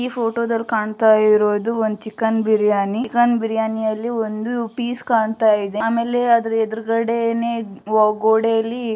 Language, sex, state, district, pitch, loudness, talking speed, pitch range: Kannada, female, Karnataka, Shimoga, 225 Hz, -19 LUFS, 100 wpm, 215-230 Hz